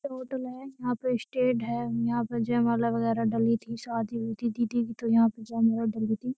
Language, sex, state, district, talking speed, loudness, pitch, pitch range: Hindi, female, Uttar Pradesh, Jyotiba Phule Nagar, 205 wpm, -28 LUFS, 235 Hz, 230-245 Hz